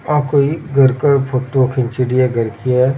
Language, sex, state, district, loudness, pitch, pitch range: Rajasthani, male, Rajasthan, Churu, -15 LUFS, 130 Hz, 125-140 Hz